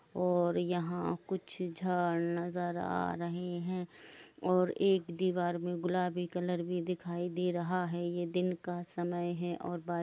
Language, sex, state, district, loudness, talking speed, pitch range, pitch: Hindi, female, Jharkhand, Jamtara, -35 LUFS, 140 wpm, 175-180 Hz, 175 Hz